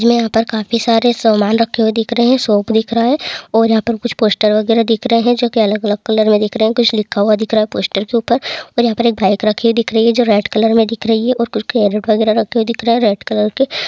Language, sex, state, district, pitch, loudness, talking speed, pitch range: Hindi, female, Bihar, Bhagalpur, 225 Hz, -14 LUFS, 305 wpm, 215-235 Hz